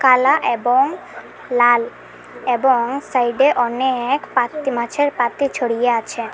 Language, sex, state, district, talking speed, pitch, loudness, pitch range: Bengali, female, Assam, Hailakandi, 95 wpm, 250 Hz, -17 LUFS, 240-275 Hz